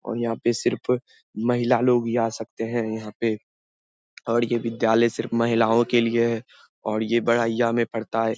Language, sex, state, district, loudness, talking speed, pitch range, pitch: Hindi, male, Bihar, Lakhisarai, -23 LUFS, 185 wpm, 115-120 Hz, 115 Hz